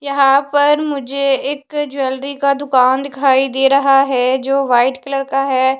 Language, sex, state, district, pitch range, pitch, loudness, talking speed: Hindi, female, Odisha, Khordha, 265-280 Hz, 275 Hz, -15 LUFS, 165 wpm